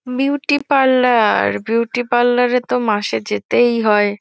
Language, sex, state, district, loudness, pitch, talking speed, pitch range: Bengali, female, West Bengal, Kolkata, -16 LUFS, 240 Hz, 130 wpm, 210-250 Hz